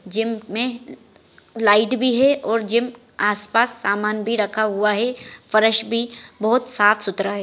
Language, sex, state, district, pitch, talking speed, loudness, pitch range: Hindi, female, Maharashtra, Solapur, 225 Hz, 145 wpm, -19 LUFS, 210-240 Hz